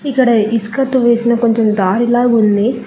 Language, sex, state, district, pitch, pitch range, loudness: Telugu, female, Telangana, Hyderabad, 235 Hz, 220-245 Hz, -13 LUFS